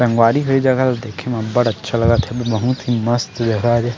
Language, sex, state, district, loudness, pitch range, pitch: Chhattisgarhi, male, Chhattisgarh, Sarguja, -17 LUFS, 115-125 Hz, 120 Hz